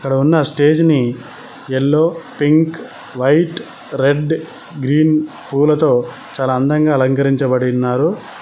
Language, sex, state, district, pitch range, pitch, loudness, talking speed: Telugu, male, Telangana, Mahabubabad, 130-155 Hz, 145 Hz, -15 LUFS, 100 wpm